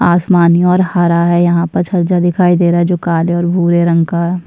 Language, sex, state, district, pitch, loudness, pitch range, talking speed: Hindi, female, Uttarakhand, Tehri Garhwal, 175 Hz, -12 LUFS, 170-175 Hz, 255 wpm